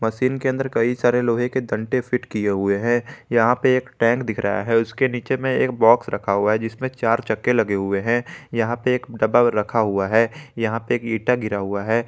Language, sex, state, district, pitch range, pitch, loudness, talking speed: Hindi, male, Jharkhand, Garhwa, 110-125 Hz, 115 Hz, -21 LUFS, 235 wpm